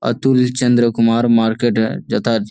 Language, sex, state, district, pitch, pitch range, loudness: Bengali, male, West Bengal, Malda, 115 Hz, 115-120 Hz, -15 LUFS